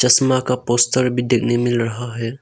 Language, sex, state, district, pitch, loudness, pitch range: Hindi, male, Arunachal Pradesh, Longding, 120 Hz, -17 LUFS, 120-125 Hz